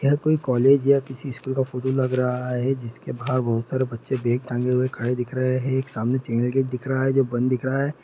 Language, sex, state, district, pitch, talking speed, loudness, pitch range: Hindi, male, Bihar, Lakhisarai, 130 Hz, 260 wpm, -23 LUFS, 125-135 Hz